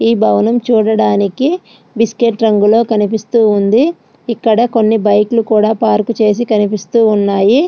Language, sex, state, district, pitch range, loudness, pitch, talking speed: Telugu, female, Andhra Pradesh, Srikakulam, 210-230 Hz, -12 LUFS, 220 Hz, 125 wpm